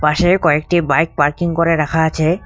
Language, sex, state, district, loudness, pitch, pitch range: Bengali, male, West Bengal, Cooch Behar, -15 LUFS, 160 Hz, 150-170 Hz